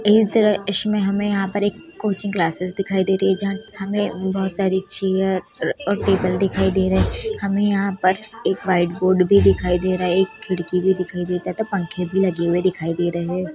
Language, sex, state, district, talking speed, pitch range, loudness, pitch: Hindi, female, Chhattisgarh, Raigarh, 200 wpm, 180-200 Hz, -20 LUFS, 190 Hz